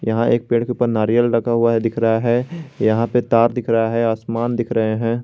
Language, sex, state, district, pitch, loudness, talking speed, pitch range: Hindi, male, Jharkhand, Garhwa, 115 Hz, -18 LUFS, 250 wpm, 115-120 Hz